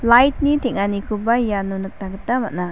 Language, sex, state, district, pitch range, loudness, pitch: Garo, female, Meghalaya, South Garo Hills, 195-245 Hz, -20 LUFS, 215 Hz